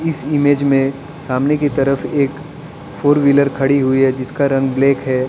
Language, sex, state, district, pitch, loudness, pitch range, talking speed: Hindi, male, Arunachal Pradesh, Lower Dibang Valley, 140 Hz, -15 LUFS, 135-145 Hz, 180 wpm